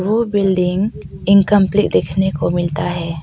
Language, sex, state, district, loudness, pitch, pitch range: Hindi, female, Arunachal Pradesh, Papum Pare, -16 LUFS, 190 Hz, 175-200 Hz